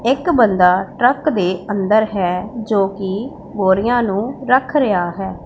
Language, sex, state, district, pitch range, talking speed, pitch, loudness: Punjabi, female, Punjab, Pathankot, 190-245 Hz, 145 wpm, 210 Hz, -16 LUFS